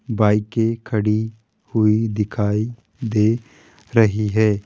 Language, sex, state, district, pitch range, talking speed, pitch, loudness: Hindi, male, Rajasthan, Jaipur, 105-115 Hz, 90 wpm, 110 Hz, -20 LUFS